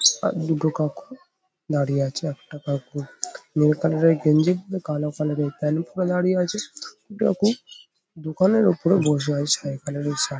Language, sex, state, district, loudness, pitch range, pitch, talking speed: Bengali, male, West Bengal, Paschim Medinipur, -23 LUFS, 150-185 Hz, 155 Hz, 165 wpm